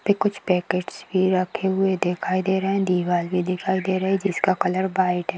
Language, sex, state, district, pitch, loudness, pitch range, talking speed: Hindi, female, Bihar, Sitamarhi, 185 Hz, -22 LUFS, 180-190 Hz, 235 wpm